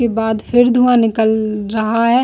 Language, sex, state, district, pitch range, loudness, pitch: Hindi, female, Chhattisgarh, Bilaspur, 220-245 Hz, -14 LUFS, 225 Hz